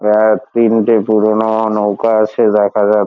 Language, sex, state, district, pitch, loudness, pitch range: Bengali, male, West Bengal, Dakshin Dinajpur, 110 Hz, -12 LUFS, 105-110 Hz